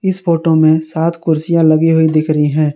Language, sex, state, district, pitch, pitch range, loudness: Hindi, male, Jharkhand, Garhwa, 160 Hz, 155-165 Hz, -13 LUFS